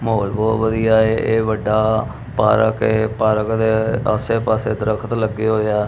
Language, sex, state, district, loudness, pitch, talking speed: Punjabi, male, Punjab, Kapurthala, -18 LUFS, 110 Hz, 175 wpm